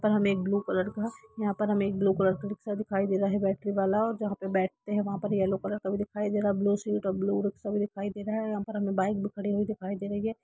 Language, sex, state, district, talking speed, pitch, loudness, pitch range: Hindi, female, Jharkhand, Jamtara, 300 wpm, 205 Hz, -30 LUFS, 195-210 Hz